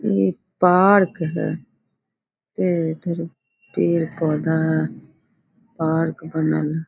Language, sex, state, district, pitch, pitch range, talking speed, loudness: Hindi, female, Bihar, Muzaffarpur, 160 Hz, 155-170 Hz, 85 wpm, -21 LUFS